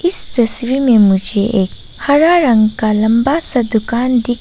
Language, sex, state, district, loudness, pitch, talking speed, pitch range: Hindi, female, Arunachal Pradesh, Papum Pare, -13 LUFS, 235 Hz, 175 wpm, 215-265 Hz